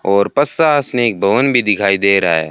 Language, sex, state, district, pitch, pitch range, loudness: Hindi, male, Rajasthan, Bikaner, 115 Hz, 100-140 Hz, -13 LUFS